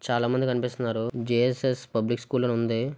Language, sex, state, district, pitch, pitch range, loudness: Telugu, male, Andhra Pradesh, Visakhapatnam, 120 Hz, 115-125 Hz, -26 LUFS